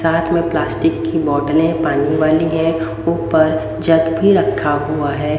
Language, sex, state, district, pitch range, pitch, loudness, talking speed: Hindi, female, Haryana, Rohtak, 150-165 Hz, 160 Hz, -16 LUFS, 155 wpm